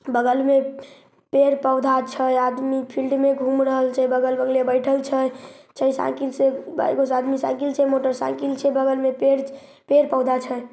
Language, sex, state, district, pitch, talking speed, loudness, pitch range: Maithili, female, Bihar, Samastipur, 265 Hz, 145 wpm, -21 LUFS, 260-275 Hz